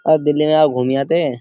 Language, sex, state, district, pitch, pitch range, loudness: Hindi, male, Uttar Pradesh, Jyotiba Phule Nagar, 150 Hz, 135-155 Hz, -16 LUFS